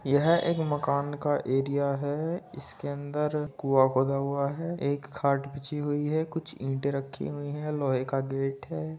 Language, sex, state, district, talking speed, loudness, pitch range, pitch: Hindi, male, Uttar Pradesh, Budaun, 175 wpm, -29 LUFS, 135-150 Hz, 140 Hz